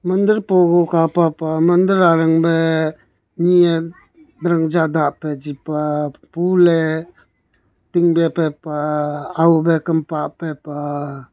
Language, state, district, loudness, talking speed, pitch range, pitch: Nyishi, Arunachal Pradesh, Papum Pare, -17 LUFS, 120 wpm, 150-170 Hz, 160 Hz